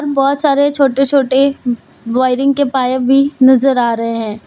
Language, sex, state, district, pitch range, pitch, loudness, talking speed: Hindi, female, Jharkhand, Deoghar, 250-275 Hz, 270 Hz, -13 LUFS, 150 wpm